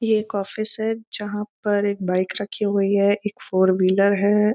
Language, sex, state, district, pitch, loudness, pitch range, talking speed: Hindi, female, Uttar Pradesh, Deoria, 205 Hz, -21 LUFS, 200-215 Hz, 200 wpm